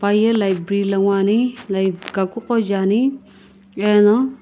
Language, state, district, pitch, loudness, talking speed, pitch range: Sumi, Nagaland, Kohima, 205 Hz, -18 LUFS, 110 wpm, 195-230 Hz